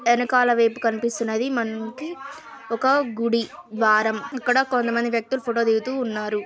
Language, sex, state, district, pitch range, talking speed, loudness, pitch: Telugu, female, Andhra Pradesh, Krishna, 225-250 Hz, 120 wpm, -22 LUFS, 235 Hz